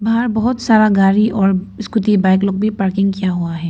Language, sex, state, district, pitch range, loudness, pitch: Hindi, female, Arunachal Pradesh, Papum Pare, 195-220 Hz, -15 LUFS, 200 Hz